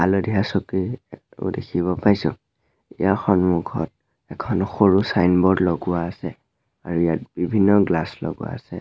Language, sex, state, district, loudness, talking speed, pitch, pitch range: Assamese, male, Assam, Sonitpur, -21 LUFS, 130 wpm, 95 Hz, 85-100 Hz